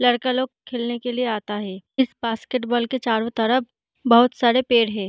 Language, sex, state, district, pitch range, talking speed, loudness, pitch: Hindi, female, Uttar Pradesh, Gorakhpur, 225-250 Hz, 200 wpm, -21 LUFS, 240 Hz